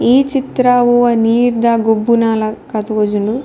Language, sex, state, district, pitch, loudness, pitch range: Tulu, female, Karnataka, Dakshina Kannada, 235 Hz, -13 LUFS, 220-245 Hz